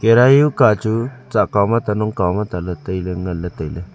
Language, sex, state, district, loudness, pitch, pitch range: Wancho, male, Arunachal Pradesh, Longding, -17 LUFS, 105 Hz, 90-115 Hz